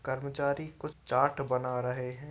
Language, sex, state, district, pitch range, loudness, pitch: Hindi, male, Uttar Pradesh, Varanasi, 125-145 Hz, -32 LUFS, 140 Hz